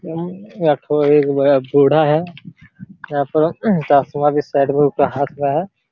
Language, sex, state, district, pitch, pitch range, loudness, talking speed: Hindi, male, Bihar, Supaul, 150 Hz, 140-165 Hz, -16 LUFS, 150 wpm